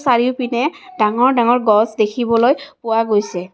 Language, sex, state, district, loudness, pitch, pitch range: Assamese, female, Assam, Kamrup Metropolitan, -16 LUFS, 235 Hz, 215-255 Hz